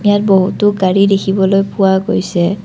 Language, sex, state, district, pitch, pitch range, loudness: Assamese, female, Assam, Kamrup Metropolitan, 195 Hz, 190-200 Hz, -13 LUFS